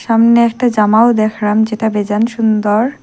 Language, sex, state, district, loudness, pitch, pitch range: Bengali, female, Assam, Hailakandi, -12 LUFS, 220 Hz, 210-230 Hz